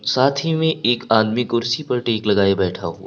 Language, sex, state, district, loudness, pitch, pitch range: Hindi, male, Uttar Pradesh, Lucknow, -19 LUFS, 115 Hz, 100-125 Hz